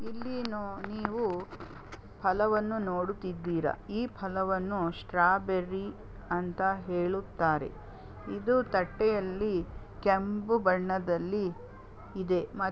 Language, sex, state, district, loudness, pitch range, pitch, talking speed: Kannada, female, Karnataka, Belgaum, -31 LUFS, 170-205 Hz, 185 Hz, 80 wpm